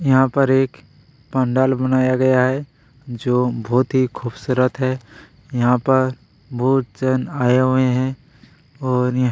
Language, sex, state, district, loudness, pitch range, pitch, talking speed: Hindi, male, Chhattisgarh, Kabirdham, -19 LUFS, 125-130 Hz, 130 Hz, 130 wpm